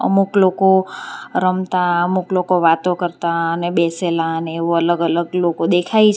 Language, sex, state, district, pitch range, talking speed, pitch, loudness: Gujarati, female, Gujarat, Valsad, 170-185 Hz, 155 wpm, 175 Hz, -17 LUFS